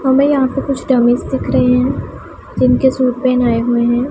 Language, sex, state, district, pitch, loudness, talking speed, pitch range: Hindi, female, Punjab, Pathankot, 255 Hz, -14 LUFS, 205 wpm, 245-265 Hz